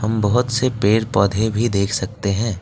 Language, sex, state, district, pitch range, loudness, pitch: Hindi, male, Assam, Kamrup Metropolitan, 100-115 Hz, -19 LUFS, 110 Hz